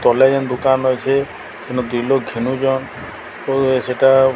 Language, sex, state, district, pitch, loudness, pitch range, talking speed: Odia, male, Odisha, Sambalpur, 130 Hz, -17 LUFS, 125-135 Hz, 150 wpm